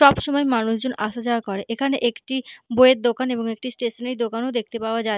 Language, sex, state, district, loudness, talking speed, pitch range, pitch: Bengali, female, West Bengal, Purulia, -22 LUFS, 210 wpm, 230-255 Hz, 240 Hz